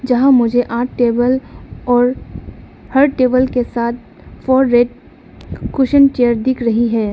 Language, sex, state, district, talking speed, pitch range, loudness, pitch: Hindi, female, Arunachal Pradesh, Lower Dibang Valley, 135 wpm, 240-260 Hz, -14 LUFS, 245 Hz